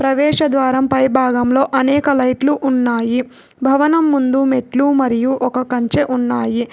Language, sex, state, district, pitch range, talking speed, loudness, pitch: Telugu, female, Telangana, Hyderabad, 250-275 Hz, 115 wpm, -15 LUFS, 265 Hz